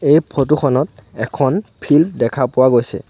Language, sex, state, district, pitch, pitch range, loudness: Assamese, male, Assam, Sonitpur, 135 Hz, 125-150 Hz, -16 LUFS